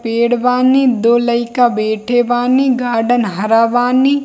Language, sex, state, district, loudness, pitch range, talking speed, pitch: Hindi, female, Bihar, Darbhanga, -13 LUFS, 230-250 Hz, 125 wpm, 245 Hz